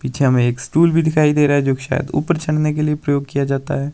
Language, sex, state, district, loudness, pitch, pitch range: Hindi, male, Himachal Pradesh, Shimla, -17 LUFS, 145 Hz, 135-155 Hz